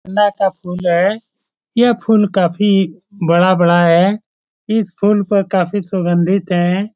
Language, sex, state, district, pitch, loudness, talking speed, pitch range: Hindi, male, Bihar, Supaul, 195 Hz, -15 LUFS, 130 wpm, 180-210 Hz